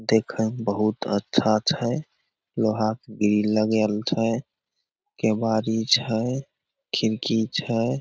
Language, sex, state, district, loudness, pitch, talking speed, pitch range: Maithili, male, Bihar, Samastipur, -24 LUFS, 110 Hz, 105 wpm, 110-120 Hz